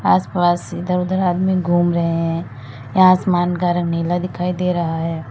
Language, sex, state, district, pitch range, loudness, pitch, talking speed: Hindi, female, Uttar Pradesh, Lalitpur, 165-180 Hz, -18 LUFS, 175 Hz, 190 wpm